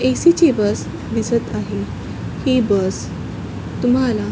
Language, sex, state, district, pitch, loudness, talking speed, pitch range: Marathi, female, Maharashtra, Chandrapur, 240 Hz, -19 LUFS, 125 wpm, 205-255 Hz